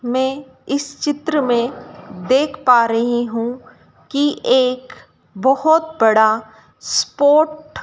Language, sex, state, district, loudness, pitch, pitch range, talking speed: Hindi, female, Madhya Pradesh, Dhar, -17 LUFS, 260 Hz, 235-290 Hz, 105 wpm